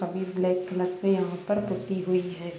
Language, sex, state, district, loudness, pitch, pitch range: Hindi, female, Bihar, Jamui, -28 LUFS, 185 Hz, 180-190 Hz